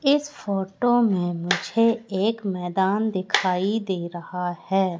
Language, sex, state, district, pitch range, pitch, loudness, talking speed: Hindi, female, Madhya Pradesh, Katni, 180-220 Hz, 195 Hz, -24 LUFS, 120 wpm